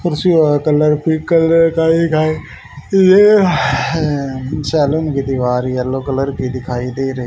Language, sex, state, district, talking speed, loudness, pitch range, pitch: Hindi, male, Haryana, Charkhi Dadri, 100 wpm, -14 LUFS, 130-165 Hz, 150 Hz